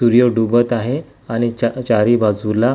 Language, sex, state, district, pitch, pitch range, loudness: Marathi, male, Maharashtra, Gondia, 120 Hz, 115-125 Hz, -16 LUFS